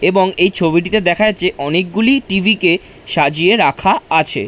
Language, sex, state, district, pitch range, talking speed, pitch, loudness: Bengali, male, West Bengal, Jhargram, 175-215 Hz, 145 wpm, 185 Hz, -14 LUFS